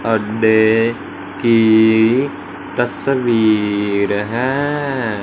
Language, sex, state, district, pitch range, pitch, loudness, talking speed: Hindi, male, Punjab, Fazilka, 110-125 Hz, 110 Hz, -15 LUFS, 45 wpm